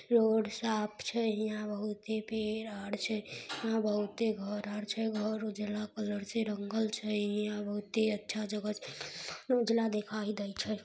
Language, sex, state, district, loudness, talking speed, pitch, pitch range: Maithili, female, Bihar, Samastipur, -35 LUFS, 155 wpm, 215 Hz, 210-220 Hz